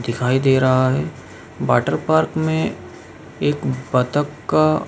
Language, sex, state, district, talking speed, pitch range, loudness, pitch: Hindi, male, Uttar Pradesh, Jalaun, 135 wpm, 125-150 Hz, -19 LUFS, 130 Hz